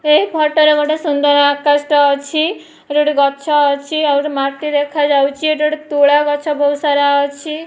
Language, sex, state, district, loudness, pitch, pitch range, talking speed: Odia, female, Odisha, Nuapada, -14 LUFS, 295 Hz, 285-305 Hz, 180 wpm